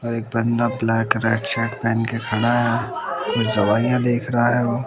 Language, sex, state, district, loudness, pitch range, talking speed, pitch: Hindi, male, Bihar, West Champaran, -20 LUFS, 115-120 Hz, 185 wpm, 115 Hz